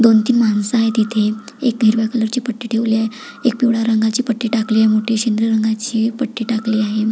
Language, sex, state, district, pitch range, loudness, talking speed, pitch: Marathi, female, Maharashtra, Pune, 220-235 Hz, -17 LUFS, 195 wpm, 225 Hz